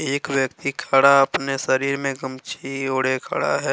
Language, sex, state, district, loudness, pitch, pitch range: Hindi, male, Jharkhand, Deoghar, -21 LUFS, 135 Hz, 130-140 Hz